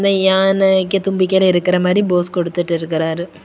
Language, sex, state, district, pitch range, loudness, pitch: Tamil, female, Tamil Nadu, Kanyakumari, 175-190 Hz, -15 LUFS, 185 Hz